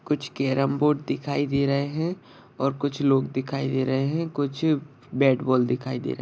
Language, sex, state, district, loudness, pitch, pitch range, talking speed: Hindi, male, Maharashtra, Sindhudurg, -25 LUFS, 140 Hz, 130-145 Hz, 195 wpm